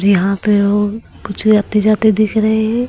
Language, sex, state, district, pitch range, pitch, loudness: Hindi, female, Uttar Pradesh, Lucknow, 205-220 Hz, 215 Hz, -13 LUFS